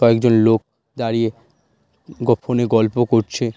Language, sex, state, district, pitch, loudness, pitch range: Bengali, male, West Bengal, North 24 Parganas, 115 Hz, -18 LUFS, 115-120 Hz